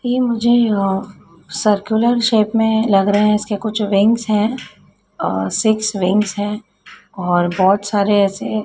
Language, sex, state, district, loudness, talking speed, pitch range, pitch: Hindi, female, Madhya Pradesh, Dhar, -16 LUFS, 150 wpm, 195-220 Hz, 210 Hz